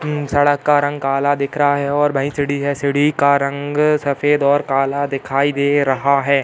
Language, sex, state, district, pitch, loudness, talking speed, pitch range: Hindi, male, Uttar Pradesh, Hamirpur, 140 Hz, -17 LUFS, 205 wpm, 140-145 Hz